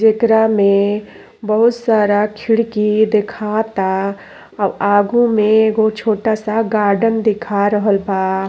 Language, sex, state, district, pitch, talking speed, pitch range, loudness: Bhojpuri, female, Uttar Pradesh, Ghazipur, 215 Hz, 105 wpm, 205-220 Hz, -15 LUFS